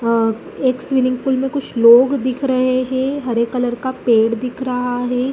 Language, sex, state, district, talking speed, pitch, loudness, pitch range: Hindi, female, Chhattisgarh, Rajnandgaon, 190 wpm, 255 Hz, -17 LUFS, 240-260 Hz